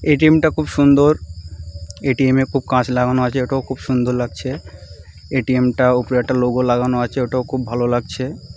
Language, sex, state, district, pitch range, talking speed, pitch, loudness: Bengali, male, West Bengal, North 24 Parganas, 120-130 Hz, 180 wpm, 125 Hz, -17 LUFS